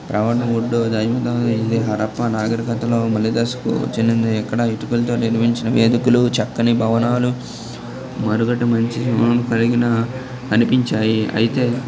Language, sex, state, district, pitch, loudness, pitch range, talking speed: Telugu, male, Telangana, Nalgonda, 115 Hz, -18 LUFS, 115-120 Hz, 95 wpm